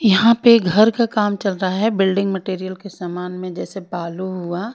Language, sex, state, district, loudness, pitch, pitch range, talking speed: Hindi, female, Haryana, Rohtak, -18 LUFS, 195 Hz, 185-210 Hz, 205 wpm